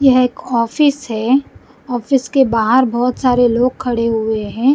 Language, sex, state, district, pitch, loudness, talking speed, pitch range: Hindi, female, Punjab, Kapurthala, 250 Hz, -15 LUFS, 165 wpm, 235-265 Hz